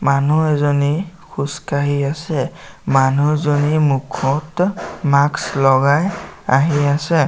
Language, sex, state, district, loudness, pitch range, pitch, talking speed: Assamese, male, Assam, Sonitpur, -17 LUFS, 140-155 Hz, 145 Hz, 80 wpm